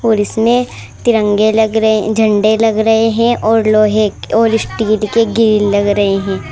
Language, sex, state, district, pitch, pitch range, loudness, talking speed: Hindi, female, Uttar Pradesh, Saharanpur, 220 Hz, 210-225 Hz, -12 LUFS, 185 wpm